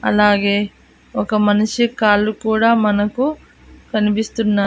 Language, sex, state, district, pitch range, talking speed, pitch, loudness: Telugu, female, Andhra Pradesh, Annamaya, 205-225 Hz, 90 wpm, 215 Hz, -17 LUFS